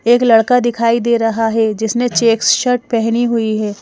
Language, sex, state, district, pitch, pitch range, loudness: Hindi, female, Madhya Pradesh, Bhopal, 230 Hz, 225-240 Hz, -14 LUFS